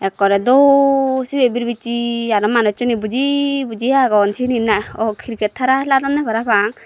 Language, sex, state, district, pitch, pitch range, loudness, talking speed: Chakma, female, Tripura, West Tripura, 235 Hz, 215-265 Hz, -16 LUFS, 155 wpm